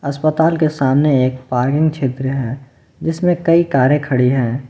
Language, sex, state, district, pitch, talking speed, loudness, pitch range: Hindi, male, Jharkhand, Ranchi, 140 Hz, 155 wpm, -16 LUFS, 130-155 Hz